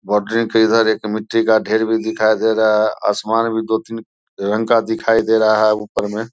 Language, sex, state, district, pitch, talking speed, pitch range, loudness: Hindi, male, Bihar, Saharsa, 110 Hz, 245 wpm, 110-115 Hz, -16 LUFS